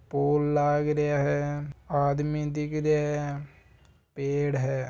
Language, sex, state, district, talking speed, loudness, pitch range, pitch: Marwari, male, Rajasthan, Nagaur, 110 wpm, -27 LUFS, 140-150 Hz, 145 Hz